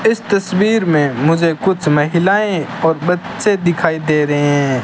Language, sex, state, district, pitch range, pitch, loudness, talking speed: Hindi, male, Rajasthan, Bikaner, 150-195 Hz, 170 Hz, -15 LUFS, 150 wpm